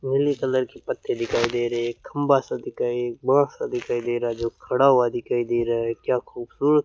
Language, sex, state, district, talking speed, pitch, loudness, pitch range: Hindi, male, Rajasthan, Bikaner, 265 wpm, 125 Hz, -24 LUFS, 120-145 Hz